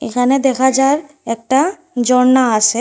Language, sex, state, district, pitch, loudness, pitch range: Bengali, female, Assam, Hailakandi, 260 Hz, -14 LUFS, 245-275 Hz